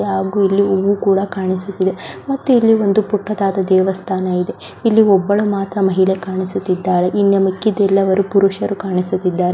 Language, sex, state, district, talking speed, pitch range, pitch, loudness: Kannada, female, Karnataka, Belgaum, 125 wpm, 190-200 Hz, 195 Hz, -16 LUFS